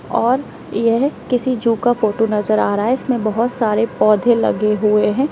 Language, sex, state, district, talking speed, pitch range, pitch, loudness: Hindi, female, Uttar Pradesh, Lalitpur, 190 wpm, 215-250 Hz, 230 Hz, -17 LUFS